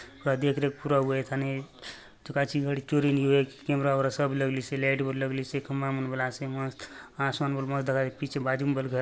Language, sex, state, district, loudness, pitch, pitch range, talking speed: Halbi, male, Chhattisgarh, Bastar, -29 LUFS, 135 Hz, 135-140 Hz, 235 wpm